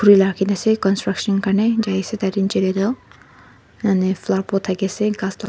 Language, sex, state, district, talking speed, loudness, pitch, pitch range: Nagamese, female, Nagaland, Dimapur, 205 wpm, -19 LUFS, 195 Hz, 195-210 Hz